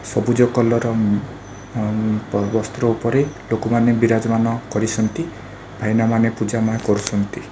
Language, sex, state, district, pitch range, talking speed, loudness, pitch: Odia, male, Odisha, Khordha, 105-115 Hz, 135 wpm, -19 LUFS, 110 Hz